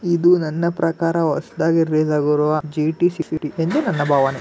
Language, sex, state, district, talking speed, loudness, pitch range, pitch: Kannada, male, Karnataka, Gulbarga, 135 wpm, -19 LUFS, 150-165 Hz, 160 Hz